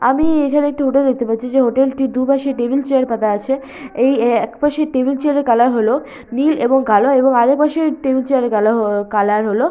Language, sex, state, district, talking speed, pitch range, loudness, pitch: Bengali, female, West Bengal, Purulia, 210 wpm, 235-275 Hz, -15 LUFS, 265 Hz